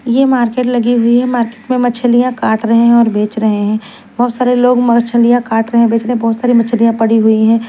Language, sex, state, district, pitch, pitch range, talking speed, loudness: Hindi, female, Delhi, New Delhi, 235 Hz, 225-245 Hz, 240 wpm, -12 LUFS